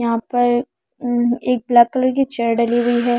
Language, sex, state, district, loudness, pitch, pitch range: Hindi, female, Delhi, New Delhi, -17 LUFS, 240 Hz, 240-250 Hz